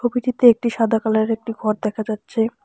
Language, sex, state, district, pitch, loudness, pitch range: Bengali, female, West Bengal, Alipurduar, 225 Hz, -19 LUFS, 220-240 Hz